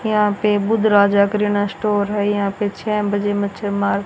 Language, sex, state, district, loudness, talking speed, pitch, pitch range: Hindi, female, Haryana, Rohtak, -18 LUFS, 190 wpm, 205 Hz, 200-210 Hz